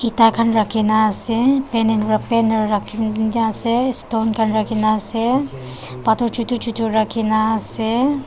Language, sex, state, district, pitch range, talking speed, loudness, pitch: Nagamese, female, Nagaland, Dimapur, 220-235 Hz, 165 wpm, -18 LUFS, 225 Hz